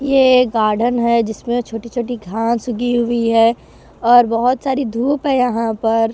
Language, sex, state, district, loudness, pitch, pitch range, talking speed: Hindi, female, Haryana, Rohtak, -16 LUFS, 235 Hz, 225-250 Hz, 155 wpm